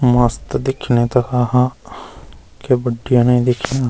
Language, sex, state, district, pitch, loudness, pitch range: Garhwali, male, Uttarakhand, Uttarkashi, 125 Hz, -16 LUFS, 120-125 Hz